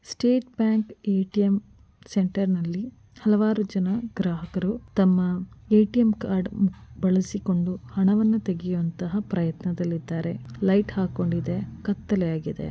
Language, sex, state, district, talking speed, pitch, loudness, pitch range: Kannada, female, Karnataka, Mysore, 80 wpm, 195 Hz, -25 LUFS, 180-210 Hz